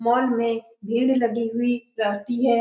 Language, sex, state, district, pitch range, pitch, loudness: Hindi, female, Bihar, Lakhisarai, 230-245 Hz, 235 Hz, -23 LUFS